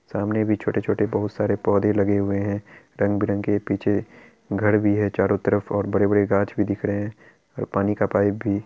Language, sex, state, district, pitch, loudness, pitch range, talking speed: Hindi, male, Bihar, Araria, 100 Hz, -22 LUFS, 100-105 Hz, 185 wpm